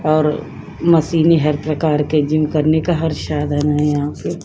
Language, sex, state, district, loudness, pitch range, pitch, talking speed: Hindi, female, Bihar, Vaishali, -17 LUFS, 150-160 Hz, 155 Hz, 175 wpm